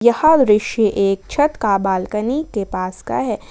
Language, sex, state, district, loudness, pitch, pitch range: Hindi, female, Jharkhand, Ranchi, -17 LUFS, 210 Hz, 195-250 Hz